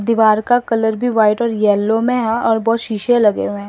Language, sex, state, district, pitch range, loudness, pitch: Hindi, female, Assam, Sonitpur, 215-235 Hz, -15 LUFS, 225 Hz